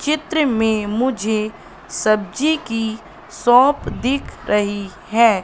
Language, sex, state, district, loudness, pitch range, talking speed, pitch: Hindi, female, Madhya Pradesh, Katni, -19 LUFS, 215-265 Hz, 100 wpm, 225 Hz